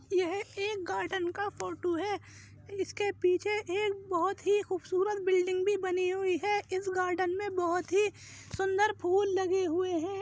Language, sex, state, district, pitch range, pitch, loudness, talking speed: Hindi, female, Uttar Pradesh, Jyotiba Phule Nagar, 365-400 Hz, 375 Hz, -31 LUFS, 160 wpm